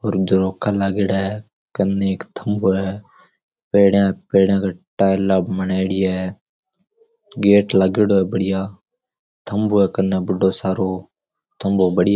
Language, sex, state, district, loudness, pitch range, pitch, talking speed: Rajasthani, male, Rajasthan, Churu, -19 LUFS, 95-100 Hz, 95 Hz, 135 wpm